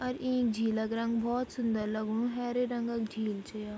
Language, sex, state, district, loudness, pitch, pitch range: Garhwali, female, Uttarakhand, Tehri Garhwal, -32 LUFS, 230 Hz, 220-245 Hz